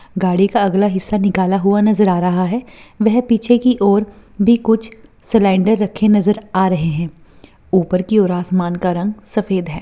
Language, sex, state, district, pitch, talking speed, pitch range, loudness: Hindi, female, Bihar, Darbhanga, 200 Hz, 160 wpm, 185-215 Hz, -15 LUFS